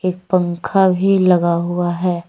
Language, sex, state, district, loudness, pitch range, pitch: Hindi, female, Jharkhand, Deoghar, -16 LUFS, 175-185 Hz, 180 Hz